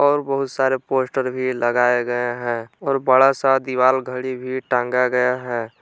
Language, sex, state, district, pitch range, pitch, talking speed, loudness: Hindi, male, Jharkhand, Palamu, 125-130 Hz, 130 Hz, 165 wpm, -20 LUFS